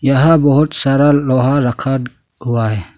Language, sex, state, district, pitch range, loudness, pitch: Hindi, male, Arunachal Pradesh, Longding, 120-145 Hz, -13 LUFS, 135 Hz